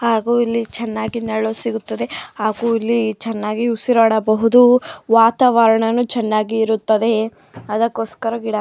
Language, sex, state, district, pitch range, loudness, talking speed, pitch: Kannada, female, Karnataka, Mysore, 220-235 Hz, -17 LUFS, 95 wpm, 225 Hz